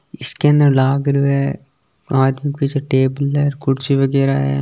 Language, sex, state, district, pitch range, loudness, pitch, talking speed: Marwari, male, Rajasthan, Nagaur, 135-140 Hz, -16 LUFS, 140 Hz, 140 wpm